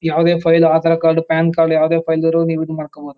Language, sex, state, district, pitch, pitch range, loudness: Kannada, male, Karnataka, Chamarajanagar, 165 Hz, 160-165 Hz, -15 LUFS